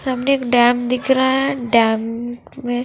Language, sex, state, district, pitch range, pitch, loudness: Hindi, female, Punjab, Fazilka, 240-260 Hz, 245 Hz, -17 LUFS